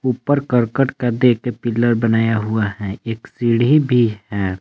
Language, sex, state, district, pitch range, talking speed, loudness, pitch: Hindi, male, Jharkhand, Palamu, 110-125 Hz, 170 wpm, -18 LUFS, 120 Hz